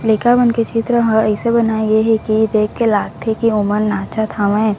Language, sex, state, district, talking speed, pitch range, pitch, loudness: Chhattisgarhi, female, Chhattisgarh, Raigarh, 190 wpm, 215-230 Hz, 220 Hz, -15 LUFS